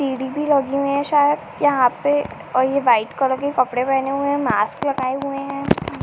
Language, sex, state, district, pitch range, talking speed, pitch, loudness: Hindi, female, Uttar Pradesh, Ghazipur, 255-285 Hz, 210 wpm, 275 Hz, -19 LUFS